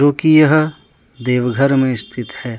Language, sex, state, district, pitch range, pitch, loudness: Hindi, male, Jharkhand, Deoghar, 120-145 Hz, 130 Hz, -15 LUFS